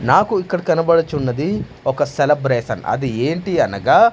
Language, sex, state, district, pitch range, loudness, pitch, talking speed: Telugu, male, Andhra Pradesh, Manyam, 130-175 Hz, -18 LUFS, 145 Hz, 115 wpm